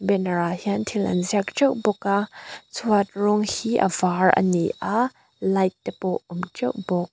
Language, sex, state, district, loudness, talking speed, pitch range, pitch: Mizo, female, Mizoram, Aizawl, -23 LUFS, 195 wpm, 185-210 Hz, 200 Hz